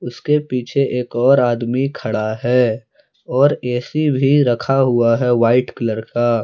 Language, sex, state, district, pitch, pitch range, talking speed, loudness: Hindi, male, Jharkhand, Palamu, 125 Hz, 120-135 Hz, 150 wpm, -17 LUFS